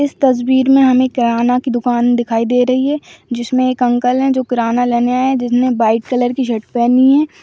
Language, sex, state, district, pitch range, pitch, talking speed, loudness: Magahi, female, Bihar, Gaya, 240-260 Hz, 250 Hz, 220 wpm, -14 LUFS